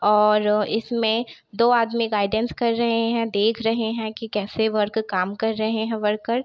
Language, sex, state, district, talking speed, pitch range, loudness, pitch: Hindi, female, Bihar, Begusarai, 185 wpm, 210-230 Hz, -22 LUFS, 220 Hz